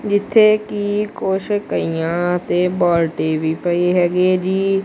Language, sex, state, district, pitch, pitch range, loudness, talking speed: Punjabi, male, Punjab, Kapurthala, 185 Hz, 175-205 Hz, -17 LUFS, 135 wpm